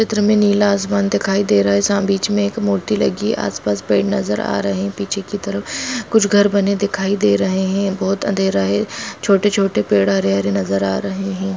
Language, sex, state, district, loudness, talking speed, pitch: Hindi, female, Bihar, Jahanabad, -17 LUFS, 215 wpm, 195 Hz